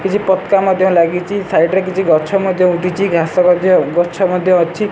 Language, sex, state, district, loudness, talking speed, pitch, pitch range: Odia, male, Odisha, Sambalpur, -13 LUFS, 185 wpm, 185 Hz, 175-190 Hz